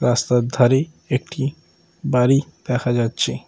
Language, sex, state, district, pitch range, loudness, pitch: Bengali, male, West Bengal, Cooch Behar, 125-140 Hz, -20 LUFS, 125 Hz